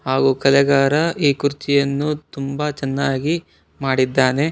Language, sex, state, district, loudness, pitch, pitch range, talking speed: Kannada, male, Karnataka, Bangalore, -18 LUFS, 140 Hz, 135-145 Hz, 95 wpm